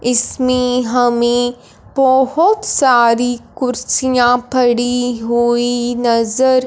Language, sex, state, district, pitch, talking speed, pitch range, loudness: Hindi, female, Punjab, Fazilka, 245 Hz, 70 wpm, 240-255 Hz, -14 LUFS